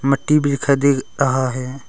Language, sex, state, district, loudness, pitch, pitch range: Hindi, male, Arunachal Pradesh, Longding, -18 LUFS, 140 Hz, 130-140 Hz